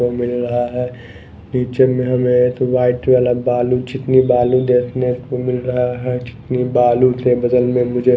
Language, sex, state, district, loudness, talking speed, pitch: Hindi, male, Bihar, West Champaran, -16 LUFS, 185 wpm, 125 Hz